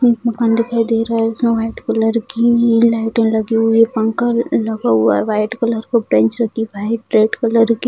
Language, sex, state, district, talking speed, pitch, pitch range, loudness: Hindi, female, Bihar, Bhagalpur, 205 wpm, 230 Hz, 225-235 Hz, -15 LUFS